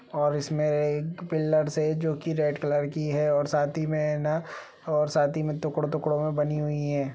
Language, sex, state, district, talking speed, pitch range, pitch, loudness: Hindi, male, Uttar Pradesh, Gorakhpur, 195 wpm, 145-155 Hz, 150 Hz, -27 LUFS